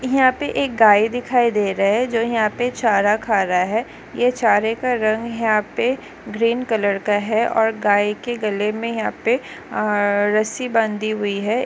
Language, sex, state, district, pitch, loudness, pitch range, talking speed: Hindi, female, Goa, North and South Goa, 220 Hz, -19 LUFS, 210-240 Hz, 185 wpm